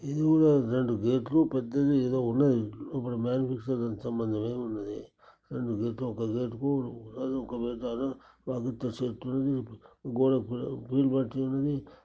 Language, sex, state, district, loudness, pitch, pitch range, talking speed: Telugu, male, Telangana, Nalgonda, -30 LUFS, 130 Hz, 120-135 Hz, 120 wpm